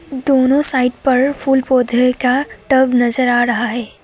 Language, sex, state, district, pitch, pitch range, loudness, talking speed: Hindi, female, Assam, Kamrup Metropolitan, 255 Hz, 245-270 Hz, -14 LUFS, 165 wpm